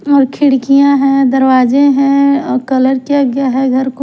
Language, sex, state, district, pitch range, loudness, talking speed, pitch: Hindi, female, Himachal Pradesh, Shimla, 265-280 Hz, -11 LUFS, 165 wpm, 275 Hz